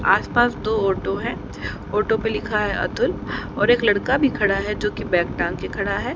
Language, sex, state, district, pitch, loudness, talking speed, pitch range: Hindi, female, Haryana, Jhajjar, 210 Hz, -21 LUFS, 215 wpm, 205-235 Hz